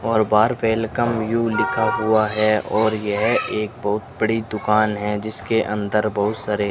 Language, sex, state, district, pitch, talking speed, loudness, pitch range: Hindi, male, Rajasthan, Bikaner, 110 Hz, 170 wpm, -20 LUFS, 105-110 Hz